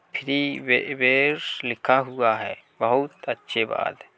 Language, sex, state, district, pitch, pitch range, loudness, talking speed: Hindi, male, Uttar Pradesh, Hamirpur, 130 Hz, 125-140 Hz, -23 LUFS, 160 wpm